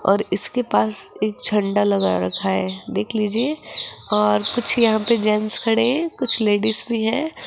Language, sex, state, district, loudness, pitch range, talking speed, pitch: Hindi, female, Rajasthan, Jaipur, -20 LUFS, 205-235 Hz, 175 wpm, 215 Hz